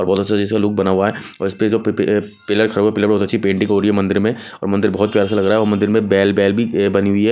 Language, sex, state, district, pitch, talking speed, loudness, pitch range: Hindi, male, Odisha, Nuapada, 105 Hz, 305 wpm, -16 LUFS, 100-105 Hz